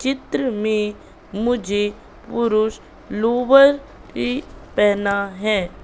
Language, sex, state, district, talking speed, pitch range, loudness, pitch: Hindi, female, Madhya Pradesh, Katni, 80 wpm, 205-250 Hz, -19 LUFS, 215 Hz